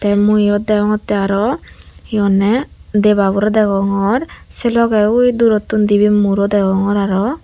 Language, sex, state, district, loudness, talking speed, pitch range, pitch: Chakma, female, Tripura, Unakoti, -14 LUFS, 135 wpm, 200-220 Hz, 210 Hz